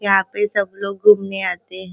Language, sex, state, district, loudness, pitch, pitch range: Hindi, female, Maharashtra, Nagpur, -18 LUFS, 195 Hz, 190-205 Hz